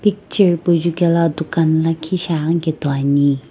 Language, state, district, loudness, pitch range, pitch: Sumi, Nagaland, Dimapur, -17 LUFS, 160-170 Hz, 165 Hz